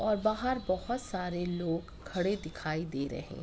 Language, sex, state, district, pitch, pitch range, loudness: Hindi, female, Uttar Pradesh, Ghazipur, 180 Hz, 165-215 Hz, -34 LUFS